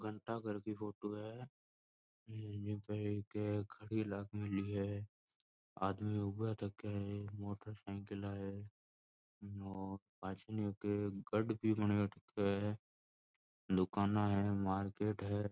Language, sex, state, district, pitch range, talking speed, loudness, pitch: Marwari, male, Rajasthan, Nagaur, 100-105 Hz, 95 wpm, -41 LUFS, 105 Hz